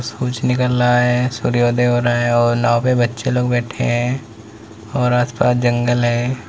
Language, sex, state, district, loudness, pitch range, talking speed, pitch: Hindi, male, Uttar Pradesh, Lalitpur, -17 LUFS, 120-125 Hz, 175 wpm, 120 Hz